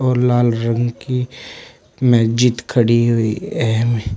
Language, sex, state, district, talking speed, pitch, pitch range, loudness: Hindi, male, Uttar Pradesh, Shamli, 145 wpm, 120 Hz, 115-125 Hz, -17 LUFS